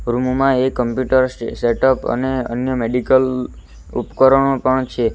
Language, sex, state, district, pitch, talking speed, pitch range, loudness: Gujarati, male, Gujarat, Valsad, 130 Hz, 140 wpm, 120-130 Hz, -17 LUFS